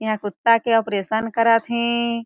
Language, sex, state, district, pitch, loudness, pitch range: Chhattisgarhi, female, Chhattisgarh, Jashpur, 230 Hz, -20 LUFS, 220-235 Hz